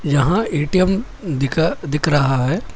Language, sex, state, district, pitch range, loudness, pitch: Hindi, male, Telangana, Hyderabad, 145-185 Hz, -18 LUFS, 155 Hz